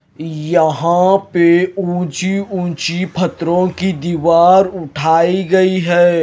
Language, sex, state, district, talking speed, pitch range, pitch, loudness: Hindi, male, Himachal Pradesh, Shimla, 95 wpm, 170-185 Hz, 175 Hz, -14 LUFS